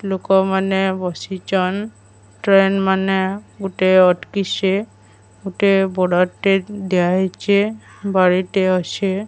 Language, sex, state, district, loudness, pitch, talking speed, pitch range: Odia, female, Odisha, Sambalpur, -18 LUFS, 190 Hz, 80 wpm, 185-195 Hz